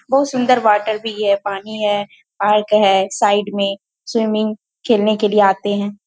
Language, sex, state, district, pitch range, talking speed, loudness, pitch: Hindi, female, Bihar, Purnia, 205-215 Hz, 180 wpm, -17 LUFS, 210 Hz